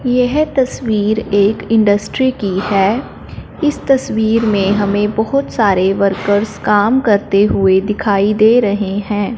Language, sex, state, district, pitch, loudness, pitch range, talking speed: Hindi, female, Punjab, Fazilka, 210 Hz, -14 LUFS, 200-235 Hz, 130 wpm